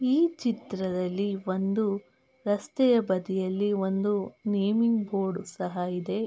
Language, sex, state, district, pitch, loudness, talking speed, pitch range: Kannada, female, Karnataka, Mysore, 200 Hz, -28 LUFS, 95 wpm, 185-215 Hz